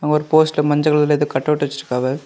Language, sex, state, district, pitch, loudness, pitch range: Tamil, male, Tamil Nadu, Kanyakumari, 150 Hz, -17 LUFS, 140-150 Hz